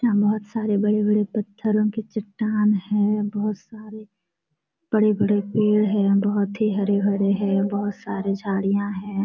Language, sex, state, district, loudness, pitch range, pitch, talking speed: Hindi, female, Jharkhand, Sahebganj, -22 LUFS, 200-215 Hz, 205 Hz, 135 wpm